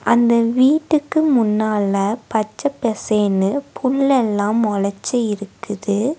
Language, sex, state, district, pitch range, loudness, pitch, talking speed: Tamil, female, Tamil Nadu, Nilgiris, 205-260 Hz, -18 LUFS, 225 Hz, 75 wpm